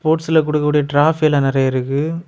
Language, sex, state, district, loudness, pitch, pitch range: Tamil, male, Tamil Nadu, Kanyakumari, -16 LUFS, 150 Hz, 140-160 Hz